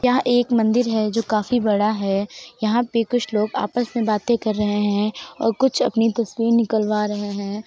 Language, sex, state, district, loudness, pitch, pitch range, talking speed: Hindi, female, Uttar Pradesh, Jalaun, -20 LUFS, 225 Hz, 210-240 Hz, 195 wpm